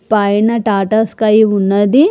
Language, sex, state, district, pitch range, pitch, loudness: Telugu, female, Andhra Pradesh, Srikakulam, 205-220 Hz, 215 Hz, -12 LUFS